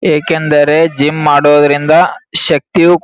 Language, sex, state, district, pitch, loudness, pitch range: Kannada, male, Karnataka, Gulbarga, 150 Hz, -10 LUFS, 145-160 Hz